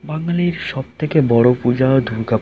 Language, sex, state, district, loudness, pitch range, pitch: Bengali, male, West Bengal, Jhargram, -17 LUFS, 120-155 Hz, 135 Hz